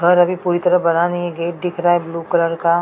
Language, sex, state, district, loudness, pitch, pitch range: Hindi, female, Maharashtra, Mumbai Suburban, -17 LUFS, 175 Hz, 170-175 Hz